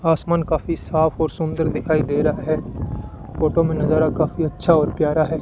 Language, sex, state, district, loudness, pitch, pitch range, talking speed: Hindi, male, Rajasthan, Bikaner, -20 LUFS, 155 Hz, 155-165 Hz, 190 wpm